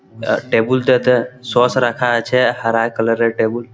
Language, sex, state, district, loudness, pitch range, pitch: Bengali, male, West Bengal, Malda, -16 LUFS, 115-125 Hz, 120 Hz